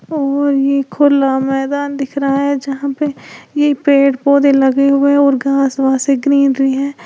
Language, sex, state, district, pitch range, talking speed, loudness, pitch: Hindi, female, Uttar Pradesh, Lalitpur, 270-280 Hz, 180 wpm, -13 LUFS, 275 Hz